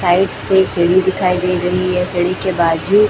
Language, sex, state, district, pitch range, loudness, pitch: Hindi, female, Chhattisgarh, Raipur, 175-190 Hz, -15 LUFS, 180 Hz